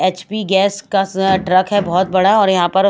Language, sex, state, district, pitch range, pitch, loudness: Hindi, female, Odisha, Malkangiri, 185-200 Hz, 190 Hz, -15 LUFS